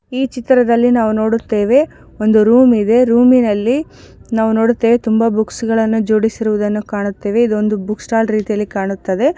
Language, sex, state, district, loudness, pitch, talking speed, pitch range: Kannada, female, Karnataka, Gulbarga, -14 LUFS, 225 Hz, 135 wpm, 215-240 Hz